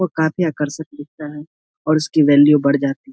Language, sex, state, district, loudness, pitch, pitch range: Hindi, male, Bihar, Saharsa, -16 LUFS, 150 Hz, 145-160 Hz